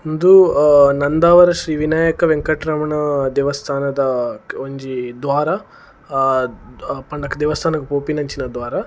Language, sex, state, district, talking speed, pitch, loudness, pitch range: Tulu, male, Karnataka, Dakshina Kannada, 90 wpm, 145 Hz, -16 LUFS, 140-155 Hz